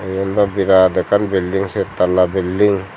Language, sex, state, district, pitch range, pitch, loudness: Chakma, male, Tripura, Unakoti, 95-100 Hz, 95 Hz, -16 LUFS